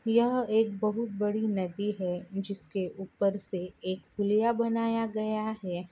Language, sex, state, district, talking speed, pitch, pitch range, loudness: Hindi, female, Maharashtra, Nagpur, 140 wpm, 205 Hz, 190-220 Hz, -30 LUFS